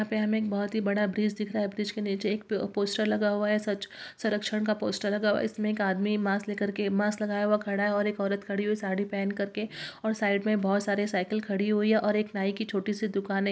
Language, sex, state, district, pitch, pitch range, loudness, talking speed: Hindi, female, Bihar, Purnia, 205 Hz, 200-210 Hz, -29 LUFS, 280 wpm